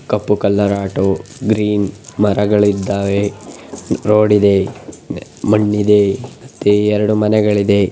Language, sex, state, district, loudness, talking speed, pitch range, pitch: Kannada, male, Karnataka, Raichur, -15 LUFS, 85 wpm, 100-105 Hz, 105 Hz